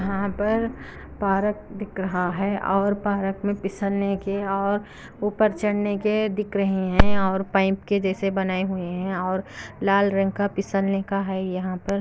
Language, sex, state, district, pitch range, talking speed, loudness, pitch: Hindi, female, Andhra Pradesh, Anantapur, 190-205 Hz, 170 wpm, -24 LUFS, 195 Hz